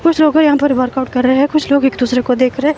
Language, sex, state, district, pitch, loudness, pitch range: Hindi, female, Himachal Pradesh, Shimla, 270 Hz, -13 LUFS, 255-300 Hz